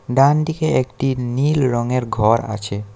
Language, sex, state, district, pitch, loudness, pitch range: Bengali, male, West Bengal, Alipurduar, 125 Hz, -18 LUFS, 115-135 Hz